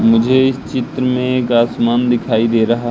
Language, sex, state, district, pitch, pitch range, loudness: Hindi, male, Madhya Pradesh, Katni, 120 Hz, 115-125 Hz, -15 LUFS